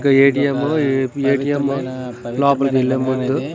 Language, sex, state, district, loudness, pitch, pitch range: Telugu, male, Andhra Pradesh, Srikakulam, -18 LUFS, 135 Hz, 130-140 Hz